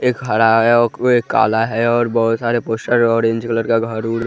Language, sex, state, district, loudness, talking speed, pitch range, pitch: Hindi, male, Bihar, West Champaran, -16 LUFS, 240 wpm, 115-120 Hz, 115 Hz